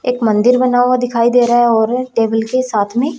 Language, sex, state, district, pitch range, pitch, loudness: Hindi, female, Haryana, Rohtak, 225-250 Hz, 245 Hz, -13 LUFS